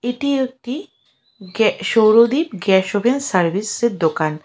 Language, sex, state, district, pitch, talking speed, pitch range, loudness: Bengali, female, West Bengal, Alipurduar, 220 Hz, 105 wpm, 190-250 Hz, -17 LUFS